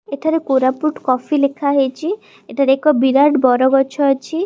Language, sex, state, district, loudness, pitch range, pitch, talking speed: Odia, female, Odisha, Khordha, -16 LUFS, 265-300 Hz, 280 Hz, 135 wpm